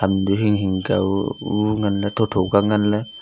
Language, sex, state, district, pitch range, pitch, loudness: Wancho, male, Arunachal Pradesh, Longding, 95-105 Hz, 100 Hz, -20 LUFS